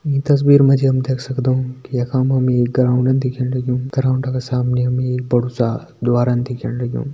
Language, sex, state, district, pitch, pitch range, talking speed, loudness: Hindi, male, Uttarakhand, Tehri Garhwal, 130 Hz, 125-130 Hz, 210 wpm, -17 LUFS